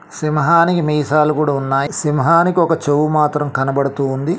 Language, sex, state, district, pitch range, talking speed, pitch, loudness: Telugu, male, Telangana, Mahabubabad, 140-165 Hz, 135 wpm, 150 Hz, -15 LUFS